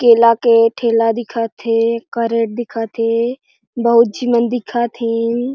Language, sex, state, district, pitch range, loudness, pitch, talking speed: Chhattisgarhi, female, Chhattisgarh, Jashpur, 230-240 Hz, -16 LUFS, 230 Hz, 150 wpm